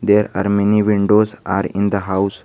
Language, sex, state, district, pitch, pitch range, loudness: English, male, Jharkhand, Garhwa, 100 Hz, 95-105 Hz, -16 LUFS